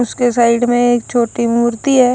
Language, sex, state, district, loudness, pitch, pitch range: Hindi, female, Maharashtra, Gondia, -14 LUFS, 240 Hz, 235-245 Hz